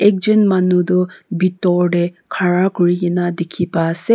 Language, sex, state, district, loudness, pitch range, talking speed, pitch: Nagamese, female, Nagaland, Kohima, -16 LUFS, 175-185 Hz, 160 wpm, 180 Hz